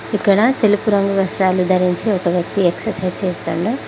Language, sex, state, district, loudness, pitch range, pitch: Telugu, female, Telangana, Mahabubabad, -17 LUFS, 180-205 Hz, 190 Hz